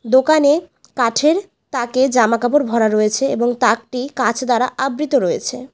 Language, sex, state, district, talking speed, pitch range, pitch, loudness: Bengali, female, West Bengal, Alipurduar, 125 wpm, 240-280 Hz, 255 Hz, -17 LUFS